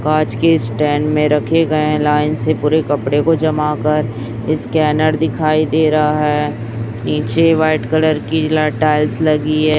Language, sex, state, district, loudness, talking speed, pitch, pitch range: Hindi, female, Chhattisgarh, Raipur, -15 LUFS, 165 wpm, 150 Hz, 150-155 Hz